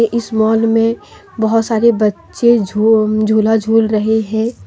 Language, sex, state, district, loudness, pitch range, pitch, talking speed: Hindi, female, Jharkhand, Deoghar, -14 LUFS, 220-225 Hz, 220 Hz, 130 wpm